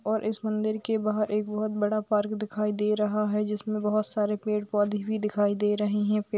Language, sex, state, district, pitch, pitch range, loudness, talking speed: Hindi, female, Bihar, Saharsa, 210 Hz, 210-215 Hz, -27 LUFS, 225 wpm